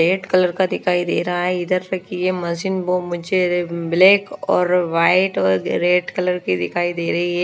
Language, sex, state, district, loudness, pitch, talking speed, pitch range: Hindi, female, Odisha, Nuapada, -18 LUFS, 180 Hz, 200 wpm, 175-185 Hz